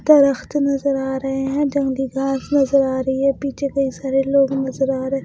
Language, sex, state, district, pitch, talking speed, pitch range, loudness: Hindi, female, Bihar, Patna, 270 Hz, 215 wpm, 270-280 Hz, -19 LUFS